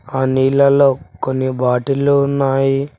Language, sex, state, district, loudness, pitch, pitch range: Telugu, male, Telangana, Mahabubabad, -15 LUFS, 135 Hz, 130-140 Hz